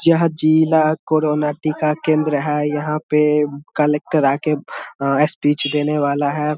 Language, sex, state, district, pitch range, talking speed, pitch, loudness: Hindi, male, Bihar, Samastipur, 150-155 Hz, 135 wpm, 150 Hz, -18 LUFS